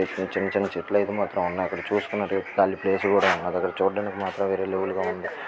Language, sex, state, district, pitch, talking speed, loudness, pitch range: Telugu, male, Andhra Pradesh, Guntur, 100 Hz, 195 wpm, -25 LUFS, 95-100 Hz